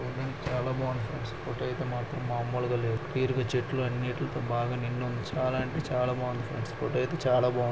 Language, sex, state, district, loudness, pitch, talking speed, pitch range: Telugu, male, Andhra Pradesh, Chittoor, -31 LUFS, 125 Hz, 195 wpm, 120-130 Hz